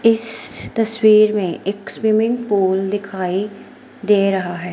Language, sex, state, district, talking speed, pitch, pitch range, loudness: Hindi, female, Himachal Pradesh, Shimla, 125 wpm, 205 Hz, 190-220 Hz, -18 LUFS